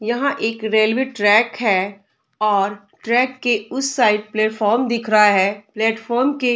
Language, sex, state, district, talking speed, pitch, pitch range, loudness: Hindi, female, Bihar, Darbhanga, 155 wpm, 220 Hz, 210-245 Hz, -18 LUFS